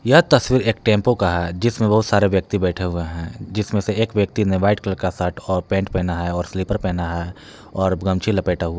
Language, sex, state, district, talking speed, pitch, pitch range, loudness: Hindi, male, Jharkhand, Palamu, 230 wpm, 95 Hz, 90-110 Hz, -20 LUFS